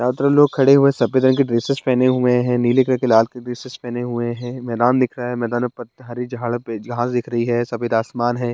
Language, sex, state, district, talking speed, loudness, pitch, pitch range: Hindi, male, Bihar, Bhagalpur, 265 wpm, -18 LUFS, 120 Hz, 120-130 Hz